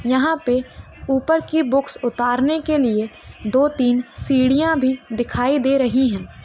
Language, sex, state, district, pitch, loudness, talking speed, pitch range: Hindi, female, Bihar, Gopalganj, 260 Hz, -19 LUFS, 150 wpm, 245-285 Hz